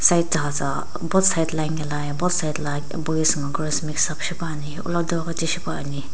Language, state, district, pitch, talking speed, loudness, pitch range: Sumi, Nagaland, Dimapur, 155 Hz, 165 wpm, -23 LUFS, 145-170 Hz